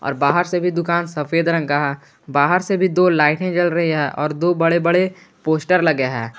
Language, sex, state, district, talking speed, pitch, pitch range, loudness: Hindi, male, Jharkhand, Garhwa, 215 wpm, 165 Hz, 145-175 Hz, -18 LUFS